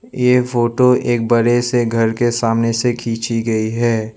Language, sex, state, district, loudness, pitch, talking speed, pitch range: Hindi, male, Assam, Sonitpur, -16 LUFS, 120 Hz, 170 wpm, 115-120 Hz